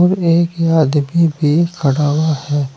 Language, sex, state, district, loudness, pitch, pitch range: Hindi, male, Uttar Pradesh, Saharanpur, -15 LUFS, 155 Hz, 145-170 Hz